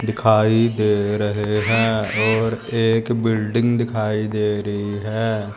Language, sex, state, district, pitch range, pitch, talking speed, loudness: Hindi, male, Punjab, Fazilka, 105-115 Hz, 110 Hz, 120 wpm, -19 LUFS